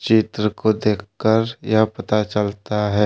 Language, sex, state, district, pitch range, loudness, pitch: Hindi, male, Jharkhand, Deoghar, 105-110 Hz, -20 LUFS, 105 Hz